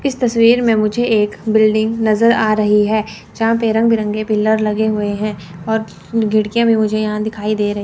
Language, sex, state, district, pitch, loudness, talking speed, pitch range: Hindi, female, Chandigarh, Chandigarh, 215 Hz, -15 LUFS, 200 wpm, 210-225 Hz